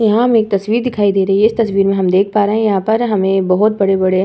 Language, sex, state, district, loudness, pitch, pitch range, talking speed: Hindi, female, Uttar Pradesh, Hamirpur, -14 LUFS, 200 Hz, 195-220 Hz, 310 wpm